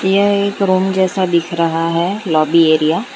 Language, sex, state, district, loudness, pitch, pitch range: Hindi, female, Gujarat, Valsad, -14 LUFS, 185 Hz, 165-195 Hz